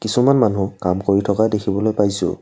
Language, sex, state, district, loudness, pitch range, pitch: Assamese, male, Assam, Kamrup Metropolitan, -18 LUFS, 100-110 Hz, 105 Hz